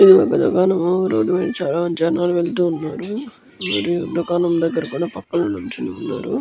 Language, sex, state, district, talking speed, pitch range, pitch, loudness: Telugu, male, Andhra Pradesh, Krishna, 150 wpm, 170-185 Hz, 175 Hz, -19 LUFS